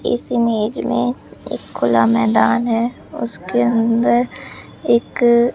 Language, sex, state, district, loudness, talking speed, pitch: Hindi, female, Bihar, Katihar, -17 LUFS, 110 wpm, 120 Hz